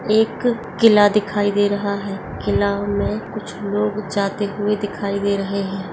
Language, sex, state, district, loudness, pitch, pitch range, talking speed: Hindi, female, Bihar, Darbhanga, -20 LUFS, 205 Hz, 200-210 Hz, 170 wpm